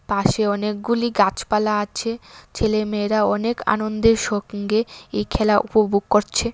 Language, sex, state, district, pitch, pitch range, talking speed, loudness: Bengali, female, Tripura, West Tripura, 210 Hz, 205-225 Hz, 120 wpm, -20 LUFS